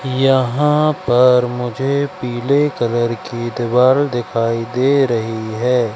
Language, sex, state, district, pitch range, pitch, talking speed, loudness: Hindi, male, Madhya Pradesh, Katni, 120-135 Hz, 125 Hz, 110 wpm, -16 LUFS